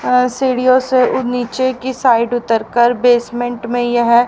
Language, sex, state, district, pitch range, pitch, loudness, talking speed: Hindi, female, Haryana, Rohtak, 240-255 Hz, 245 Hz, -15 LUFS, 170 wpm